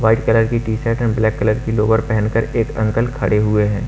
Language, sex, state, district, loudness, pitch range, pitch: Hindi, male, Haryana, Rohtak, -17 LUFS, 110-115 Hz, 110 Hz